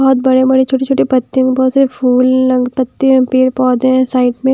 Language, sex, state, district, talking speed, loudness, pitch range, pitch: Hindi, female, Bihar, Katihar, 240 wpm, -12 LUFS, 255-265 Hz, 260 Hz